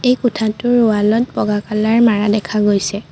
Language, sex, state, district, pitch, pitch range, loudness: Assamese, female, Assam, Sonitpur, 215 Hz, 210-235 Hz, -15 LUFS